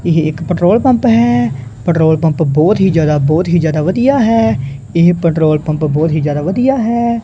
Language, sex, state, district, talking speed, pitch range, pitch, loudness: Punjabi, male, Punjab, Kapurthala, 190 wpm, 155-190 Hz, 160 Hz, -12 LUFS